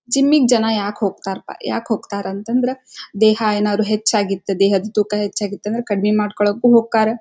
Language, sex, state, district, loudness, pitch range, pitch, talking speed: Kannada, female, Karnataka, Dharwad, -18 LUFS, 205-225 Hz, 210 Hz, 175 wpm